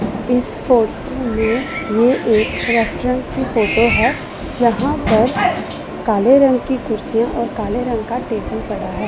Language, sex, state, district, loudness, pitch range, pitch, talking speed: Hindi, female, Punjab, Pathankot, -17 LUFS, 225-255 Hz, 235 Hz, 145 wpm